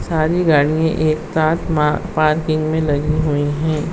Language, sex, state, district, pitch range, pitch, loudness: Hindi, female, Chhattisgarh, Raigarh, 150-160 Hz, 155 Hz, -17 LUFS